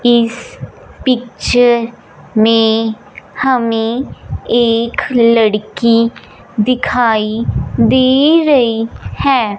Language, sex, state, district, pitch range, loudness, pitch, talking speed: Hindi, male, Punjab, Fazilka, 225-250 Hz, -13 LUFS, 235 Hz, 65 wpm